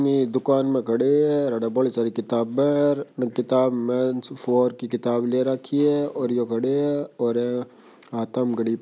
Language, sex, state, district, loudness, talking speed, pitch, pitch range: Marwari, male, Rajasthan, Churu, -23 LUFS, 185 wpm, 125 Hz, 120-135 Hz